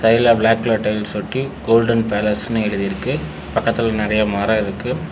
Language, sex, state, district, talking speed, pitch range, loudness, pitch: Tamil, male, Tamil Nadu, Namakkal, 140 wpm, 105-115 Hz, -18 LUFS, 115 Hz